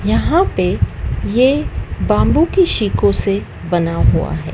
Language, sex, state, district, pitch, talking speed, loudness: Hindi, female, Madhya Pradesh, Dhar, 170 Hz, 130 wpm, -16 LUFS